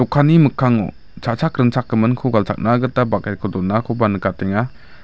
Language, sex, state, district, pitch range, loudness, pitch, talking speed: Garo, male, Meghalaya, West Garo Hills, 105-125 Hz, -18 LUFS, 115 Hz, 120 wpm